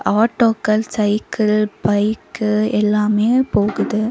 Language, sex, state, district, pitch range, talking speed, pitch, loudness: Tamil, female, Tamil Nadu, Nilgiris, 210-225 Hz, 75 wpm, 215 Hz, -17 LUFS